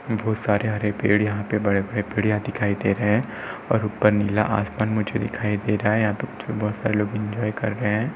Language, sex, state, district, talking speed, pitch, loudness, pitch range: Hindi, male, Uttar Pradesh, Etah, 235 wpm, 105 Hz, -23 LUFS, 105-110 Hz